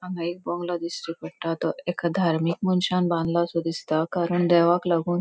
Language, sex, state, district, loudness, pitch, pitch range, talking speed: Konkani, female, Goa, North and South Goa, -25 LUFS, 170 Hz, 165-175 Hz, 170 wpm